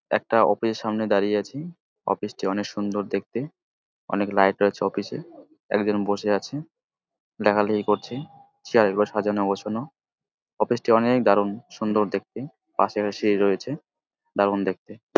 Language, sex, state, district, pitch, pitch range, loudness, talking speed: Bengali, male, West Bengal, Jalpaiguri, 105 Hz, 100-115 Hz, -24 LUFS, 150 wpm